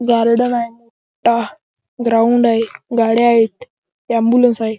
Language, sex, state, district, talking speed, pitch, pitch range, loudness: Marathi, male, Maharashtra, Chandrapur, 115 wpm, 235 Hz, 230-240 Hz, -15 LUFS